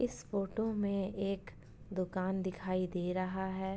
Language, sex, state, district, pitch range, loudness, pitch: Hindi, female, Uttar Pradesh, Ghazipur, 185-195 Hz, -37 LUFS, 190 Hz